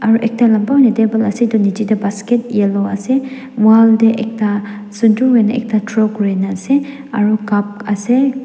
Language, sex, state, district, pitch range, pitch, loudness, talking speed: Nagamese, female, Nagaland, Dimapur, 205-240 Hz, 220 Hz, -14 LUFS, 170 wpm